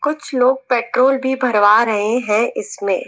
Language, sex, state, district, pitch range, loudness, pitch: Hindi, female, Rajasthan, Jaipur, 215-260 Hz, -16 LUFS, 245 Hz